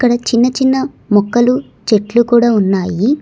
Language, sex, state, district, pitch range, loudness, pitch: Telugu, female, Telangana, Hyderabad, 210-250 Hz, -13 LUFS, 240 Hz